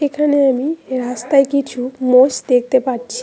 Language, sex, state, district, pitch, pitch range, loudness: Bengali, female, West Bengal, Cooch Behar, 260 Hz, 250-280 Hz, -15 LUFS